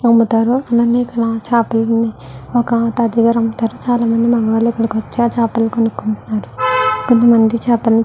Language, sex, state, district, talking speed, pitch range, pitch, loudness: Telugu, female, Andhra Pradesh, Guntur, 155 wpm, 225-235 Hz, 230 Hz, -15 LUFS